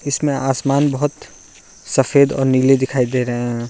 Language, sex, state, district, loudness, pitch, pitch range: Hindi, male, Arunachal Pradesh, Lower Dibang Valley, -17 LUFS, 135 Hz, 125-140 Hz